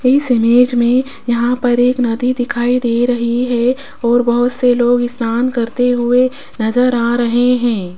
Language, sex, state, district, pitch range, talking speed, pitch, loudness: Hindi, female, Rajasthan, Jaipur, 235-250 Hz, 165 wpm, 245 Hz, -14 LUFS